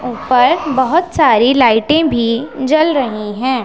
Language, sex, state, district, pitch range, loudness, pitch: Hindi, male, Punjab, Pathankot, 235-305 Hz, -13 LUFS, 260 Hz